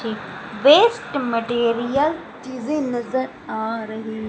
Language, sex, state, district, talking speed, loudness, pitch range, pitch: Hindi, female, Madhya Pradesh, Umaria, 70 wpm, -20 LUFS, 225-275 Hz, 240 Hz